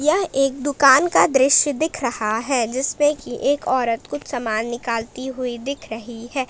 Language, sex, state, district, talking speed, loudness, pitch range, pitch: Hindi, female, Jharkhand, Palamu, 185 wpm, -20 LUFS, 235-285 Hz, 260 Hz